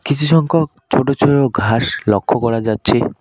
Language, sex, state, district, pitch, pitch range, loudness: Bengali, male, West Bengal, Alipurduar, 140 Hz, 120-150 Hz, -15 LUFS